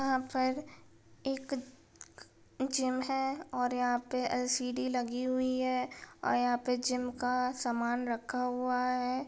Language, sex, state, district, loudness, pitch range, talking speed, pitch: Hindi, female, Bihar, Gaya, -33 LUFS, 250-260 Hz, 135 wpm, 250 Hz